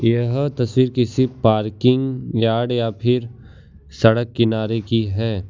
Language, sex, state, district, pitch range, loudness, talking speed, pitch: Hindi, male, Gujarat, Valsad, 115-125 Hz, -19 LUFS, 120 wpm, 115 Hz